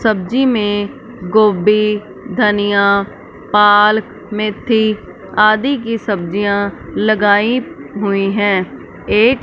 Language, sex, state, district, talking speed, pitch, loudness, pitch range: Hindi, female, Punjab, Fazilka, 85 wpm, 210 Hz, -14 LUFS, 205-220 Hz